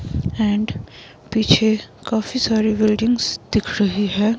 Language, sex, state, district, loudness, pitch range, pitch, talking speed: Hindi, female, Himachal Pradesh, Shimla, -19 LUFS, 200-220 Hz, 215 Hz, 110 wpm